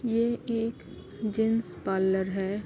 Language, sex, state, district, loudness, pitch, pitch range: Hindi, female, Uttar Pradesh, Varanasi, -29 LUFS, 220 Hz, 190-230 Hz